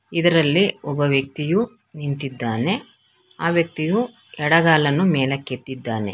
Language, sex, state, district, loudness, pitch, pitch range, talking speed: Kannada, female, Karnataka, Bangalore, -21 LUFS, 150 Hz, 135-170 Hz, 80 wpm